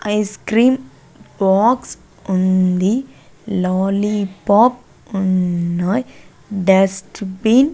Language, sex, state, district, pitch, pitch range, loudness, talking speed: Telugu, female, Andhra Pradesh, Sri Satya Sai, 200 Hz, 190-220 Hz, -17 LUFS, 70 wpm